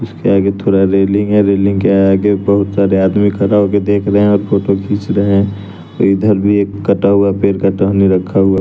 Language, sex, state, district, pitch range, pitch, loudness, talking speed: Hindi, male, Bihar, West Champaran, 95-100 Hz, 100 Hz, -12 LUFS, 215 wpm